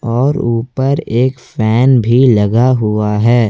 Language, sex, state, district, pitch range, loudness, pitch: Hindi, male, Jharkhand, Ranchi, 115-130 Hz, -12 LUFS, 120 Hz